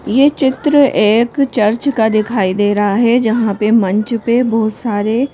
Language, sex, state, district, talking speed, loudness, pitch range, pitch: Hindi, female, Madhya Pradesh, Bhopal, 35 wpm, -13 LUFS, 210-250 Hz, 225 Hz